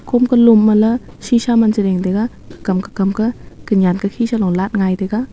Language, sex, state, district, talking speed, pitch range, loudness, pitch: Wancho, female, Arunachal Pradesh, Longding, 200 wpm, 195-235 Hz, -15 LUFS, 215 Hz